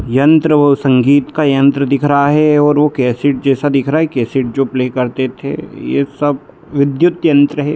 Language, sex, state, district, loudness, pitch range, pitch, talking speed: Hindi, male, Bihar, Muzaffarpur, -13 LUFS, 135-150 Hz, 140 Hz, 195 wpm